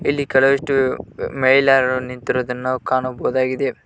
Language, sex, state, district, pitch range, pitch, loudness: Kannada, male, Karnataka, Koppal, 130-135 Hz, 130 Hz, -18 LUFS